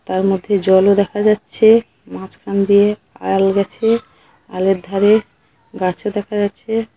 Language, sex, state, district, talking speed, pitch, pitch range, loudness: Bengali, female, West Bengal, Paschim Medinipur, 130 wpm, 200 Hz, 195-215 Hz, -16 LUFS